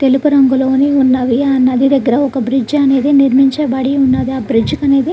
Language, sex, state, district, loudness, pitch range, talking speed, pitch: Telugu, female, Andhra Pradesh, Krishna, -12 LUFS, 260-275 Hz, 165 wpm, 270 Hz